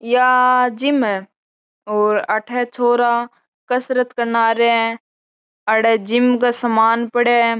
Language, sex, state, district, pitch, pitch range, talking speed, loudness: Marwari, female, Rajasthan, Churu, 235 Hz, 225-245 Hz, 110 wpm, -17 LUFS